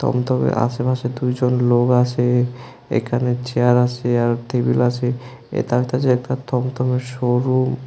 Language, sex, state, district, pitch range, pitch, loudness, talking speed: Bengali, male, Tripura, West Tripura, 120-125 Hz, 125 Hz, -19 LUFS, 135 wpm